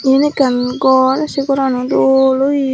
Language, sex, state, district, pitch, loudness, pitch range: Chakma, female, Tripura, Dhalai, 265 Hz, -13 LUFS, 260-275 Hz